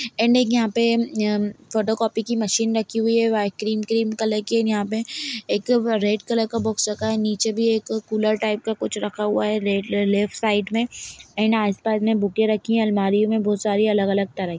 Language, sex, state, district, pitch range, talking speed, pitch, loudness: Hindi, female, Chhattisgarh, Sarguja, 210-225 Hz, 205 wpm, 220 Hz, -21 LUFS